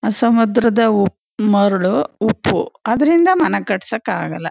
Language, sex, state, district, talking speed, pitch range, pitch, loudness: Kannada, female, Karnataka, Chamarajanagar, 105 wpm, 205-240 Hz, 230 Hz, -16 LUFS